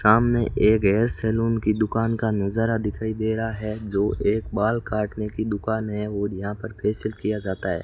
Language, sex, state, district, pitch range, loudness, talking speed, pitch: Hindi, male, Rajasthan, Bikaner, 105-110 Hz, -24 LUFS, 200 wpm, 110 Hz